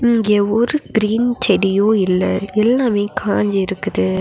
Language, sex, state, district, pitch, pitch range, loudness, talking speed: Tamil, female, Tamil Nadu, Nilgiris, 210 Hz, 195-235 Hz, -16 LUFS, 115 wpm